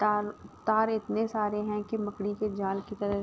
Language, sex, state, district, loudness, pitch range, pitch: Hindi, female, Uttar Pradesh, Ghazipur, -31 LUFS, 205-215 Hz, 210 Hz